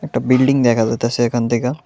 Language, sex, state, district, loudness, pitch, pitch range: Bengali, female, Tripura, West Tripura, -16 LUFS, 120 Hz, 115-130 Hz